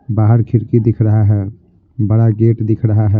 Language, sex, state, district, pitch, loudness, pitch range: Hindi, male, Bihar, Patna, 110 Hz, -13 LUFS, 105-115 Hz